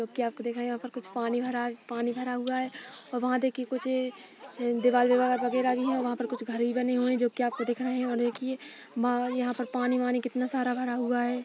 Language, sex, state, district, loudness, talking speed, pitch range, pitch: Hindi, female, Chhattisgarh, Balrampur, -29 LUFS, 255 wpm, 240-255 Hz, 250 Hz